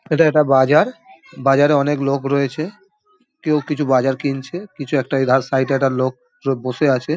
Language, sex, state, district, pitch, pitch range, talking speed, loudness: Bengali, male, West Bengal, Dakshin Dinajpur, 145 Hz, 135-160 Hz, 165 wpm, -18 LUFS